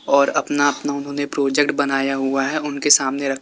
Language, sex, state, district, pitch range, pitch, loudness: Hindi, male, Uttar Pradesh, Lalitpur, 135-145 Hz, 140 Hz, -19 LUFS